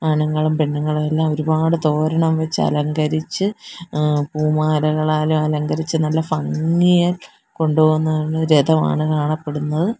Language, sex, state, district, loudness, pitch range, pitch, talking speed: Malayalam, female, Kerala, Kollam, -18 LUFS, 155-160 Hz, 155 Hz, 100 wpm